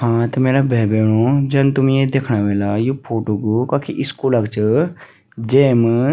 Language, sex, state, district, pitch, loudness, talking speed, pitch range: Garhwali, female, Uttarakhand, Tehri Garhwal, 120 Hz, -17 LUFS, 185 wpm, 110-135 Hz